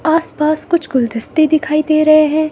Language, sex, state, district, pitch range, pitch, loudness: Hindi, female, Himachal Pradesh, Shimla, 305-315 Hz, 310 Hz, -14 LUFS